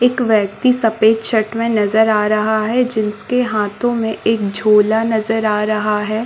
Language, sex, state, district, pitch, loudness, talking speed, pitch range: Hindi, female, Chhattisgarh, Balrampur, 220 Hz, -16 LUFS, 190 wpm, 215-225 Hz